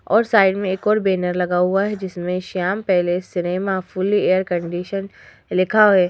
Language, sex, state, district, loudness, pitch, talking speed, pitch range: Hindi, female, Uttar Pradesh, Hamirpur, -19 LUFS, 185 Hz, 175 wpm, 180-195 Hz